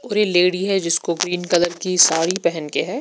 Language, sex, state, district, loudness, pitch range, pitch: Hindi, female, Bihar, Patna, -18 LUFS, 170-185 Hz, 180 Hz